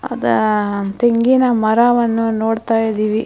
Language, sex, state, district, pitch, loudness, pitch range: Kannada, female, Karnataka, Mysore, 225 Hz, -15 LUFS, 215-235 Hz